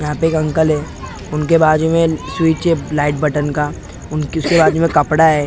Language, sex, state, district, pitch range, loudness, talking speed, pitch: Hindi, male, Maharashtra, Mumbai Suburban, 150-160 Hz, -15 LUFS, 220 wpm, 155 Hz